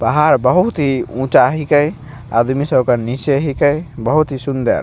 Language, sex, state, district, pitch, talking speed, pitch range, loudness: Maithili, male, Bihar, Begusarai, 135 Hz, 175 wpm, 125-145 Hz, -15 LUFS